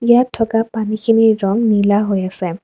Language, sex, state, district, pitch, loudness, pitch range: Assamese, female, Assam, Kamrup Metropolitan, 215 Hz, -15 LUFS, 200-225 Hz